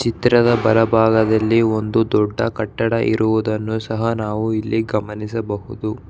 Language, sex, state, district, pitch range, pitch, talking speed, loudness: Kannada, male, Karnataka, Bangalore, 110-115 Hz, 110 Hz, 100 wpm, -18 LUFS